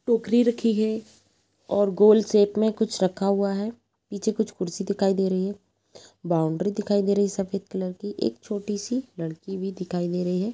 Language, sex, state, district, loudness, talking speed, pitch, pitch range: Hindi, female, Uttar Pradesh, Jalaun, -25 LUFS, 200 wpm, 200 Hz, 185-215 Hz